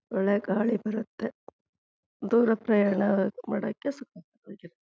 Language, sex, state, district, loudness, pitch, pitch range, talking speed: Kannada, female, Karnataka, Chamarajanagar, -27 LUFS, 205 Hz, 195-225 Hz, 75 wpm